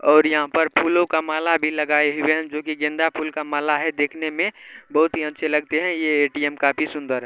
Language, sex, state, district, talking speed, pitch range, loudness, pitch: Hindi, male, Bihar, Araria, 240 wpm, 150-160 Hz, -21 LUFS, 155 Hz